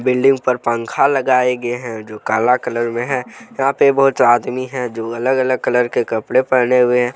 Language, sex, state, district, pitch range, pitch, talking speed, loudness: Hindi, male, Jharkhand, Deoghar, 120-130 Hz, 125 Hz, 210 wpm, -16 LUFS